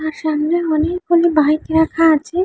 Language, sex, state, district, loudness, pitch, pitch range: Bengali, female, West Bengal, Jhargram, -16 LUFS, 320 Hz, 310-340 Hz